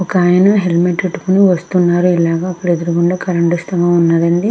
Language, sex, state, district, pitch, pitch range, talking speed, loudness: Telugu, female, Andhra Pradesh, Krishna, 175 Hz, 170-185 Hz, 145 wpm, -13 LUFS